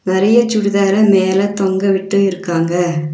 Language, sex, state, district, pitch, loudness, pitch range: Tamil, female, Tamil Nadu, Nilgiris, 195 Hz, -14 LUFS, 185-200 Hz